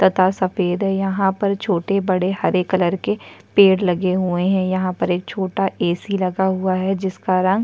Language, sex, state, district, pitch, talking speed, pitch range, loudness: Hindi, female, Uttarakhand, Tehri Garhwal, 190 Hz, 205 wpm, 185-195 Hz, -19 LUFS